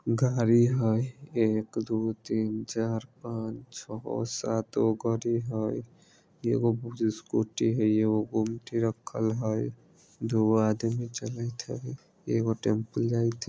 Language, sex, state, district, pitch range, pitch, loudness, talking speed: Maithili, male, Bihar, Vaishali, 110-115 Hz, 115 Hz, -29 LUFS, 125 wpm